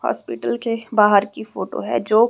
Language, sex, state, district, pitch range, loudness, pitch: Hindi, female, Haryana, Rohtak, 200-230 Hz, -19 LUFS, 215 Hz